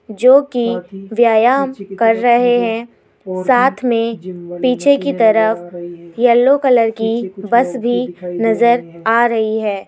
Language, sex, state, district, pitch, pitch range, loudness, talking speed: Hindi, female, Rajasthan, Jaipur, 230 Hz, 200-245 Hz, -14 LUFS, 120 wpm